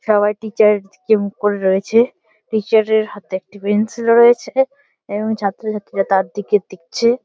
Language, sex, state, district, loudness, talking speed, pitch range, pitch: Bengali, female, West Bengal, Malda, -17 LUFS, 155 wpm, 200-220 Hz, 210 Hz